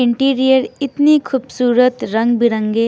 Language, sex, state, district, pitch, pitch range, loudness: Hindi, female, Bihar, Patna, 250 Hz, 235-265 Hz, -15 LUFS